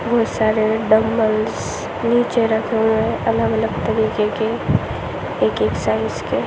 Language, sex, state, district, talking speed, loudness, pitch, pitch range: Hindi, female, Bihar, Samastipur, 120 wpm, -19 LUFS, 220 Hz, 220-230 Hz